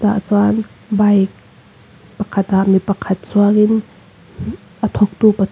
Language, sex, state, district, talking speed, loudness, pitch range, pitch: Mizo, female, Mizoram, Aizawl, 130 wpm, -15 LUFS, 195-210 Hz, 205 Hz